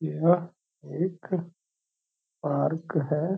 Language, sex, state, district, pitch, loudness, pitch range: Hindi, male, Bihar, Purnia, 170 Hz, -28 LUFS, 160-180 Hz